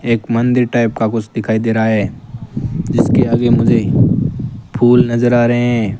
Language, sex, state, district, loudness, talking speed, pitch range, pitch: Hindi, male, Rajasthan, Bikaner, -14 LUFS, 170 wpm, 110-120 Hz, 120 Hz